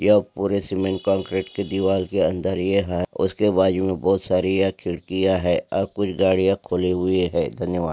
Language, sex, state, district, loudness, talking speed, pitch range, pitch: Hindi, male, Maharashtra, Aurangabad, -22 LUFS, 190 wpm, 90-95 Hz, 95 Hz